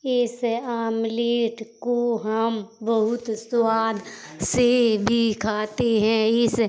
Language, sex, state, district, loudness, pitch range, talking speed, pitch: Hindi, female, Uttar Pradesh, Hamirpur, -23 LUFS, 220-235 Hz, 110 wpm, 225 Hz